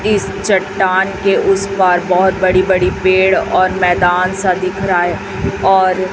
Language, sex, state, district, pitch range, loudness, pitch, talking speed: Hindi, female, Chhattisgarh, Raipur, 185-195 Hz, -13 LUFS, 185 Hz, 155 wpm